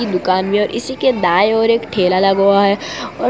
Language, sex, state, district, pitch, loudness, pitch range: Hindi, female, Gujarat, Valsad, 200 Hz, -15 LUFS, 185-225 Hz